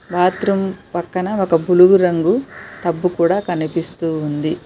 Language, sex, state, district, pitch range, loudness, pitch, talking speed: Telugu, female, Telangana, Hyderabad, 170-185 Hz, -17 LUFS, 180 Hz, 115 wpm